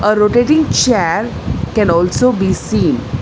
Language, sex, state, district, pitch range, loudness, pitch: English, female, Telangana, Hyderabad, 185-250 Hz, -14 LUFS, 210 Hz